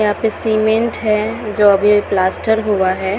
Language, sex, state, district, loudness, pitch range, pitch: Hindi, female, Chhattisgarh, Raipur, -15 LUFS, 200-220 Hz, 210 Hz